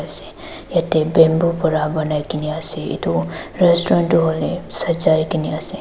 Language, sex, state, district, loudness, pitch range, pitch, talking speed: Nagamese, female, Nagaland, Dimapur, -18 LUFS, 155-170 Hz, 160 Hz, 135 wpm